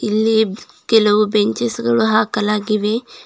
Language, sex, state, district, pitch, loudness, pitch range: Kannada, female, Karnataka, Bidar, 210 Hz, -16 LUFS, 210-220 Hz